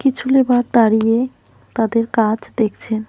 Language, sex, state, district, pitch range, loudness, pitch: Bengali, female, West Bengal, Cooch Behar, 220-245 Hz, -17 LUFS, 230 Hz